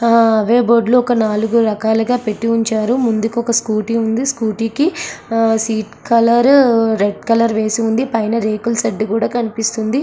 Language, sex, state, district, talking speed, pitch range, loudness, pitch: Telugu, female, Andhra Pradesh, Srikakulam, 150 wpm, 220-235 Hz, -15 LUFS, 225 Hz